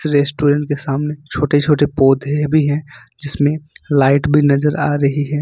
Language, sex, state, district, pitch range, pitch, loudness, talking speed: Hindi, male, Jharkhand, Ranchi, 140-150 Hz, 145 Hz, -16 LUFS, 165 wpm